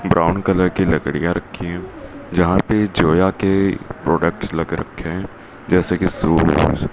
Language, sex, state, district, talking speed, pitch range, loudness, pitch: Hindi, male, Rajasthan, Bikaner, 145 wpm, 85-95 Hz, -18 LUFS, 90 Hz